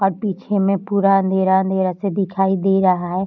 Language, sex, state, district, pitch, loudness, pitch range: Hindi, female, Bihar, Darbhanga, 195 Hz, -18 LUFS, 190-195 Hz